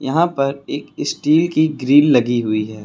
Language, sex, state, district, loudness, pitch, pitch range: Hindi, male, Uttar Pradesh, Lucknow, -16 LUFS, 140 Hz, 120-155 Hz